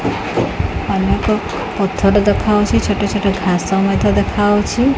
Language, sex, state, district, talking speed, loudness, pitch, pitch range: Odia, female, Odisha, Khordha, 110 wpm, -16 LUFS, 205 Hz, 195-205 Hz